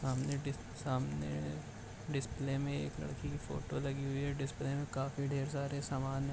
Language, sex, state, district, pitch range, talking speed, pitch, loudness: Hindi, male, Bihar, Bhagalpur, 130-140 Hz, 180 wpm, 135 Hz, -39 LUFS